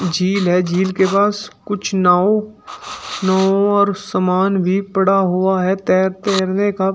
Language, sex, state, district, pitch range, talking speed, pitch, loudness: Hindi, male, Uttar Pradesh, Shamli, 185-205 Hz, 145 wpm, 195 Hz, -16 LUFS